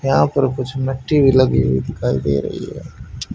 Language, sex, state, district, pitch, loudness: Hindi, male, Haryana, Charkhi Dadri, 130 Hz, -17 LUFS